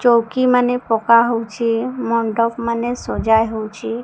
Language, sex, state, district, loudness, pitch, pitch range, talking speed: Odia, female, Odisha, Sambalpur, -17 LUFS, 230 Hz, 225-240 Hz, 105 wpm